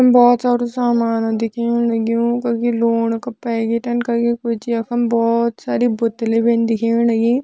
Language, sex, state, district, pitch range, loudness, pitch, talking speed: Kumaoni, female, Uttarakhand, Tehri Garhwal, 230-240 Hz, -17 LUFS, 235 Hz, 145 wpm